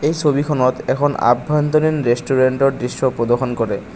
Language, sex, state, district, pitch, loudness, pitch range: Assamese, male, Assam, Kamrup Metropolitan, 130 Hz, -17 LUFS, 125-150 Hz